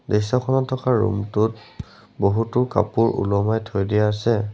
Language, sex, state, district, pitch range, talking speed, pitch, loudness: Assamese, male, Assam, Sonitpur, 105-115 Hz, 120 wpm, 110 Hz, -21 LUFS